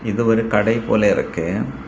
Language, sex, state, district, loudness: Tamil, male, Tamil Nadu, Kanyakumari, -18 LUFS